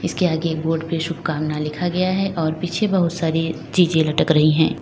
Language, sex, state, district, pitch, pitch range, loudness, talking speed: Hindi, female, Uttar Pradesh, Lalitpur, 165 Hz, 160-175 Hz, -20 LUFS, 200 wpm